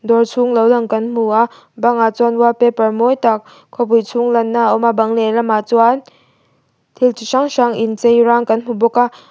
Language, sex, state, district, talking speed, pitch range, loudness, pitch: Mizo, female, Mizoram, Aizawl, 195 wpm, 225-240 Hz, -14 LUFS, 235 Hz